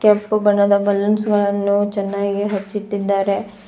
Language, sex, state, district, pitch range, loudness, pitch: Kannada, female, Karnataka, Bidar, 200-210 Hz, -18 LUFS, 205 Hz